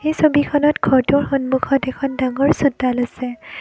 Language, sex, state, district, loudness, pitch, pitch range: Assamese, female, Assam, Kamrup Metropolitan, -18 LUFS, 275 Hz, 255-290 Hz